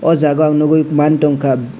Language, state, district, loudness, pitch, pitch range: Kokborok, Tripura, West Tripura, -13 LUFS, 150 Hz, 145-155 Hz